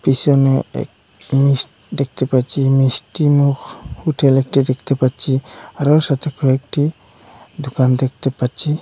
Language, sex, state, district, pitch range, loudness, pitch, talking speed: Bengali, male, Assam, Hailakandi, 130-145 Hz, -17 LUFS, 135 Hz, 115 wpm